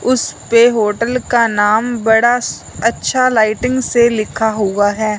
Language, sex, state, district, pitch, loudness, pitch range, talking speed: Hindi, male, Punjab, Fazilka, 230 Hz, -14 LUFS, 215-245 Hz, 125 wpm